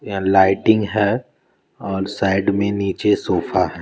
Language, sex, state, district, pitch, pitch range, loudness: Hindi, male, Bihar, Purnia, 100 Hz, 95-105 Hz, -18 LUFS